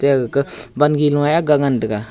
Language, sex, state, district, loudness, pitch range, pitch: Wancho, male, Arunachal Pradesh, Longding, -16 LUFS, 125-150 Hz, 140 Hz